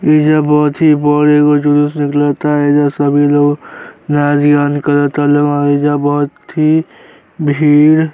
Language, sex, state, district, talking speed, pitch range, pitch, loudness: Bhojpuri, male, Uttar Pradesh, Gorakhpur, 110 wpm, 145-150 Hz, 145 Hz, -11 LUFS